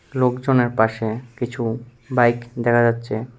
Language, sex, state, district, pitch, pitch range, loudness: Bengali, male, Tripura, West Tripura, 120 Hz, 115-125 Hz, -20 LUFS